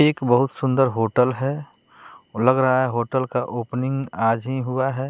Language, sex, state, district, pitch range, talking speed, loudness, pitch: Hindi, male, Bihar, West Champaran, 120-135 Hz, 190 wpm, -21 LUFS, 130 Hz